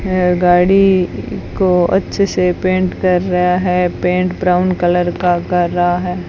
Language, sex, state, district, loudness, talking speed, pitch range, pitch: Hindi, female, Rajasthan, Bikaner, -14 LUFS, 155 wpm, 175-185 Hz, 180 Hz